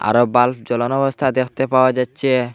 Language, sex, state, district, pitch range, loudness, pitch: Bengali, male, Assam, Hailakandi, 120-130 Hz, -17 LUFS, 130 Hz